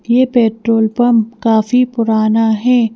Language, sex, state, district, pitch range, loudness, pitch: Hindi, female, Madhya Pradesh, Bhopal, 220-245 Hz, -13 LUFS, 230 Hz